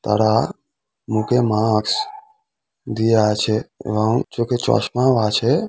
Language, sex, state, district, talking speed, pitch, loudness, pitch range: Bengali, male, West Bengal, Kolkata, 95 wpm, 115 Hz, -19 LUFS, 110-125 Hz